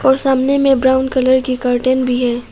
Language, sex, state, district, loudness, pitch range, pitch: Hindi, female, Arunachal Pradesh, Papum Pare, -14 LUFS, 250-265 Hz, 260 Hz